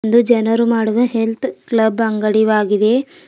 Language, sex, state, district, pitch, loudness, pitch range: Kannada, female, Karnataka, Bidar, 225 Hz, -15 LUFS, 220-235 Hz